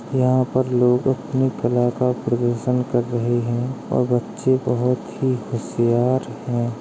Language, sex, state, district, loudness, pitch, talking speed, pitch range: Hindi, male, Uttar Pradesh, Jalaun, -21 LUFS, 125 Hz, 140 wpm, 120-130 Hz